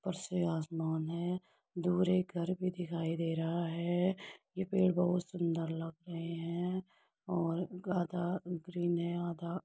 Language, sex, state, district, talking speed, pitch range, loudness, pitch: Hindi, female, Uttar Pradesh, Etah, 155 wpm, 170-180 Hz, -36 LUFS, 175 Hz